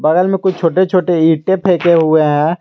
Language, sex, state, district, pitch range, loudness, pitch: Hindi, male, Jharkhand, Garhwa, 160-185 Hz, -12 LUFS, 175 Hz